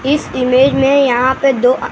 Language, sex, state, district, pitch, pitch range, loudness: Hindi, male, Maharashtra, Mumbai Suburban, 265 Hz, 255-275 Hz, -12 LUFS